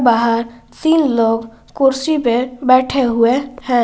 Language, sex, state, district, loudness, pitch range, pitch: Hindi, female, Jharkhand, Garhwa, -15 LUFS, 235-270 Hz, 250 Hz